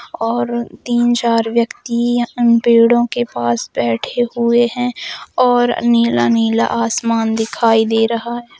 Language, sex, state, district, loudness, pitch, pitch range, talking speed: Hindi, female, Bihar, Gopalganj, -15 LUFS, 235 Hz, 225-240 Hz, 120 wpm